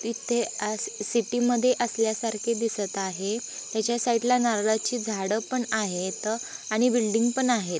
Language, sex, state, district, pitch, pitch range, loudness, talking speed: Marathi, female, Maharashtra, Pune, 225 Hz, 215-240 Hz, -26 LUFS, 140 wpm